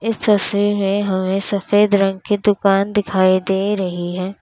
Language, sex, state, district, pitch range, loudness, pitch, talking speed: Hindi, female, Uttar Pradesh, Lalitpur, 190-205 Hz, -17 LUFS, 200 Hz, 165 wpm